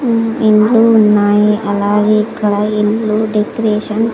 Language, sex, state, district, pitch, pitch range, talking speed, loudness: Telugu, female, Andhra Pradesh, Sri Satya Sai, 215 Hz, 210-225 Hz, 100 wpm, -12 LUFS